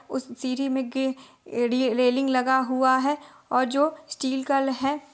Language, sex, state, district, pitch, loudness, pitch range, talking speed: Hindi, female, Chhattisgarh, Bilaspur, 265 Hz, -25 LUFS, 255-275 Hz, 150 wpm